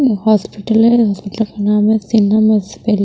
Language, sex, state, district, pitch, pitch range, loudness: Hindi, female, Bihar, West Champaran, 215 Hz, 205-220 Hz, -14 LUFS